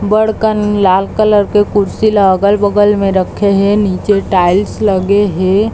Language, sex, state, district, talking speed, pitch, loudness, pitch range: Chhattisgarhi, female, Chhattisgarh, Bilaspur, 155 wpm, 205 Hz, -11 LUFS, 195-210 Hz